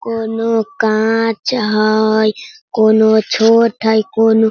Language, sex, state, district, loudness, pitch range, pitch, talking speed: Hindi, female, Bihar, Sitamarhi, -13 LUFS, 220-225 Hz, 220 Hz, 105 wpm